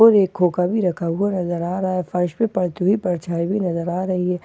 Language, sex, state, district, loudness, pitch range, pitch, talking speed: Hindi, female, Bihar, Katihar, -21 LUFS, 175-190 Hz, 180 Hz, 285 wpm